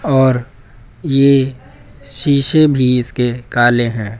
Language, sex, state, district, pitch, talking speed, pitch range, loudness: Hindi, male, Uttar Pradesh, Lucknow, 130 Hz, 100 wpm, 120-140 Hz, -13 LUFS